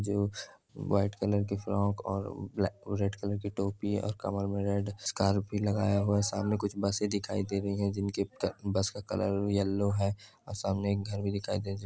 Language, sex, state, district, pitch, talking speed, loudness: Hindi, male, Andhra Pradesh, Chittoor, 100 Hz, 195 wpm, -32 LUFS